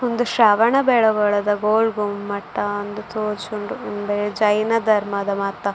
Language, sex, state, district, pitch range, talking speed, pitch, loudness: Tulu, female, Karnataka, Dakshina Kannada, 205-220 Hz, 115 wpm, 210 Hz, -20 LUFS